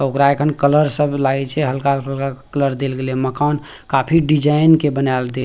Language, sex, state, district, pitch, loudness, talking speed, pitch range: Maithili, male, Bihar, Purnia, 140 Hz, -17 LUFS, 185 wpm, 135-150 Hz